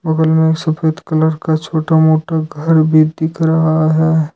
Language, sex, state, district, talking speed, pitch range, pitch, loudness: Hindi, male, Jharkhand, Ranchi, 180 wpm, 155-160 Hz, 160 Hz, -14 LUFS